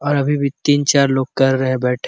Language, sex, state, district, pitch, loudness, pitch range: Hindi, male, Chhattisgarh, Bastar, 140 Hz, -16 LUFS, 130-145 Hz